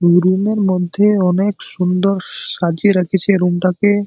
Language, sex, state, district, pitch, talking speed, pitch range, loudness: Bengali, male, West Bengal, Malda, 185 Hz, 135 wpm, 180-200 Hz, -15 LUFS